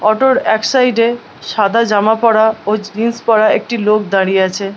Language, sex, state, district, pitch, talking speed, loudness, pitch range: Bengali, female, West Bengal, Malda, 220 Hz, 200 wpm, -13 LUFS, 205-230 Hz